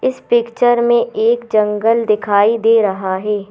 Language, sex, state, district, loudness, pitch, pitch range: Hindi, female, Madhya Pradesh, Bhopal, -14 LUFS, 225 Hz, 210-235 Hz